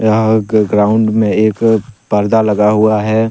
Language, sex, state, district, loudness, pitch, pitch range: Hindi, male, Jharkhand, Deoghar, -12 LUFS, 110 Hz, 105-110 Hz